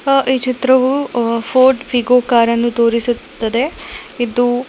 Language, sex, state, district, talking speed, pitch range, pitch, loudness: Kannada, female, Karnataka, Bangalore, 100 wpm, 235-260 Hz, 245 Hz, -15 LUFS